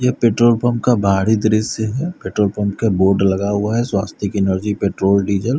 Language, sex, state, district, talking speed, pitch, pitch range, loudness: Hindi, male, Haryana, Rohtak, 215 wpm, 105 Hz, 100-115 Hz, -17 LUFS